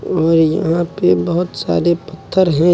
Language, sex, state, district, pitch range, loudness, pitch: Hindi, male, Uttar Pradesh, Lucknow, 160-175 Hz, -16 LUFS, 170 Hz